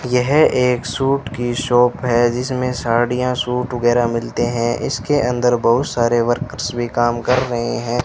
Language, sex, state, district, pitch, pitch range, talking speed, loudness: Hindi, male, Rajasthan, Bikaner, 120 Hz, 120-125 Hz, 165 wpm, -18 LUFS